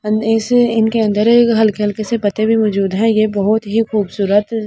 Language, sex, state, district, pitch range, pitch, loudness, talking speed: Hindi, female, Delhi, New Delhi, 210-225 Hz, 215 Hz, -14 LUFS, 165 wpm